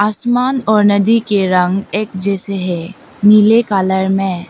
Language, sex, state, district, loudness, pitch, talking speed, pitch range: Hindi, female, Arunachal Pradesh, Papum Pare, -13 LUFS, 200 Hz, 145 wpm, 190-215 Hz